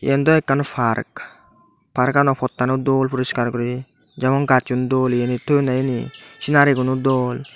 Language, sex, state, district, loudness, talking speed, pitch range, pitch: Chakma, male, Tripura, Dhalai, -19 LUFS, 135 wpm, 125-140 Hz, 130 Hz